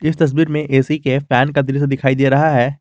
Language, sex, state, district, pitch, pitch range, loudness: Hindi, male, Jharkhand, Garhwa, 140 Hz, 135-155 Hz, -15 LUFS